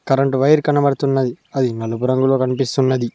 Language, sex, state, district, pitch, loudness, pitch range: Telugu, male, Telangana, Mahabubabad, 135 Hz, -17 LUFS, 130-135 Hz